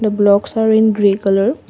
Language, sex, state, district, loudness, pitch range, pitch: English, female, Assam, Kamrup Metropolitan, -14 LUFS, 200-220 Hz, 205 Hz